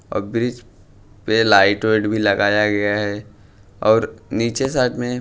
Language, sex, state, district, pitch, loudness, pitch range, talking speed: Hindi, male, Punjab, Pathankot, 105 Hz, -18 LUFS, 100-115 Hz, 160 wpm